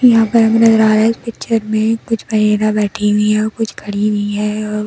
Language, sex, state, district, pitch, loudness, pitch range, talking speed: Hindi, female, Delhi, New Delhi, 215 Hz, -14 LUFS, 210-225 Hz, 210 wpm